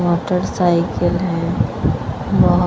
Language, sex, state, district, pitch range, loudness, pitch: Hindi, female, Himachal Pradesh, Shimla, 170-180 Hz, -18 LUFS, 175 Hz